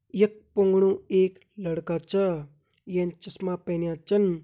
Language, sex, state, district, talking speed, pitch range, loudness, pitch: Hindi, male, Uttarakhand, Uttarkashi, 120 wpm, 170-195 Hz, -26 LUFS, 185 Hz